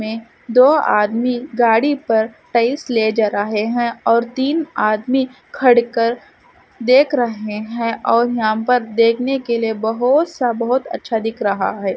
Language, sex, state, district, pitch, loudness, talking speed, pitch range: Hindi, female, Jharkhand, Sahebganj, 235 Hz, -17 LUFS, 155 wpm, 225-255 Hz